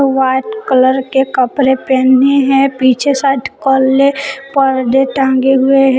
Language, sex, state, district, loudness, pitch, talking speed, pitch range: Hindi, female, Jharkhand, Palamu, -12 LUFS, 270 Hz, 130 wpm, 260-275 Hz